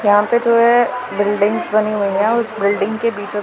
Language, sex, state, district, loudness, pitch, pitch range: Hindi, female, Punjab, Pathankot, -16 LUFS, 210 Hz, 205-230 Hz